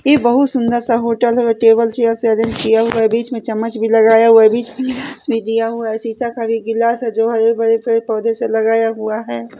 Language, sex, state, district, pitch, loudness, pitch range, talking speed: Hindi, female, Chhattisgarh, Raipur, 230 Hz, -15 LUFS, 225-235 Hz, 245 wpm